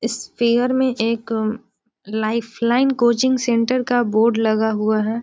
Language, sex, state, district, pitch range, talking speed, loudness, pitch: Hindi, female, Bihar, Jahanabad, 220-245 Hz, 125 wpm, -19 LUFS, 230 Hz